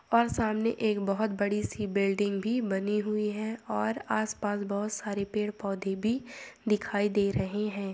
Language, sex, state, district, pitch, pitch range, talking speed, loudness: Hindi, female, Andhra Pradesh, Anantapur, 210 Hz, 200-215 Hz, 75 wpm, -30 LUFS